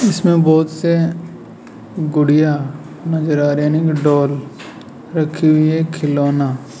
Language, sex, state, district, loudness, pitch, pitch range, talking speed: Hindi, male, Rajasthan, Jaipur, -15 LUFS, 155 Hz, 145-160 Hz, 140 wpm